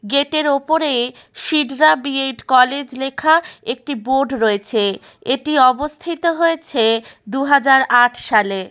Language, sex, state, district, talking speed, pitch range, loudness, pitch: Bengali, female, West Bengal, Malda, 115 wpm, 245-300 Hz, -16 LUFS, 270 Hz